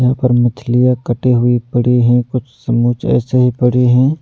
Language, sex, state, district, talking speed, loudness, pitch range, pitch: Hindi, male, Delhi, New Delhi, 185 wpm, -13 LUFS, 120-125 Hz, 125 Hz